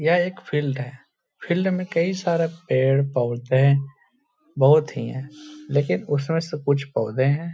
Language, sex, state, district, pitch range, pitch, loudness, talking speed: Hindi, male, Bihar, Gaya, 135-165 Hz, 145 Hz, -22 LUFS, 150 wpm